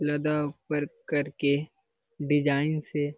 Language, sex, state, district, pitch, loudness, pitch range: Hindi, male, Bihar, Lakhisarai, 150 Hz, -28 LUFS, 145-155 Hz